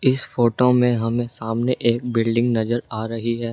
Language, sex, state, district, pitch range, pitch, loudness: Hindi, male, Rajasthan, Jaipur, 115-125 Hz, 120 Hz, -21 LUFS